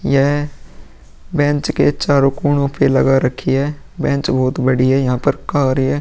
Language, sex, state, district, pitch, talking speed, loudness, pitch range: Hindi, male, Bihar, Vaishali, 140 Hz, 160 wpm, -16 LUFS, 130-145 Hz